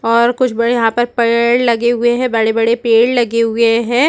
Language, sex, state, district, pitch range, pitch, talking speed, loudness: Hindi, female, Chhattisgarh, Rajnandgaon, 230-240 Hz, 235 Hz, 205 wpm, -13 LUFS